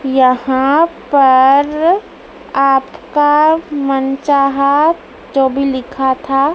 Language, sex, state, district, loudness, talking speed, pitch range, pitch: Hindi, female, Madhya Pradesh, Dhar, -13 LUFS, 65 wpm, 270-295 Hz, 275 Hz